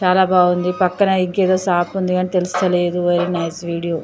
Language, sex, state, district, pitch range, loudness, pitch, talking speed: Telugu, female, Andhra Pradesh, Chittoor, 175-185 Hz, -17 LUFS, 180 Hz, 195 wpm